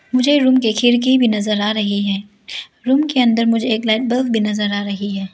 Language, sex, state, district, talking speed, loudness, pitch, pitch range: Hindi, female, Arunachal Pradesh, Lower Dibang Valley, 235 wpm, -16 LUFS, 225 Hz, 210-250 Hz